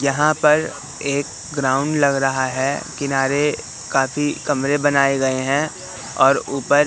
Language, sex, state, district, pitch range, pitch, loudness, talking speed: Hindi, male, Madhya Pradesh, Katni, 135-145 Hz, 140 Hz, -19 LUFS, 130 wpm